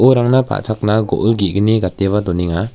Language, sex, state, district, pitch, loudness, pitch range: Garo, male, Meghalaya, West Garo Hills, 110 Hz, -15 LUFS, 100-120 Hz